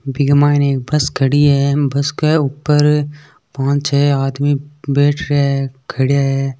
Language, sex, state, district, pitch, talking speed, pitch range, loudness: Marwari, male, Rajasthan, Nagaur, 140 Hz, 145 wpm, 135-145 Hz, -15 LUFS